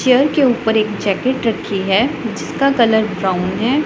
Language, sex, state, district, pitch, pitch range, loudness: Hindi, female, Punjab, Pathankot, 225 Hz, 200-260 Hz, -16 LUFS